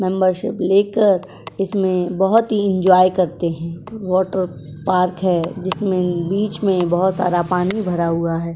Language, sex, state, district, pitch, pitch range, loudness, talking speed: Hindi, female, Uttar Pradesh, Jyotiba Phule Nagar, 185 Hz, 175-195 Hz, -18 LUFS, 140 wpm